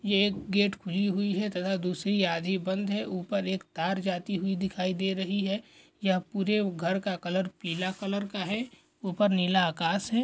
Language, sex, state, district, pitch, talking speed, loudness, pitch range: Hindi, male, Chhattisgarh, Korba, 195 Hz, 195 wpm, -29 LUFS, 185-200 Hz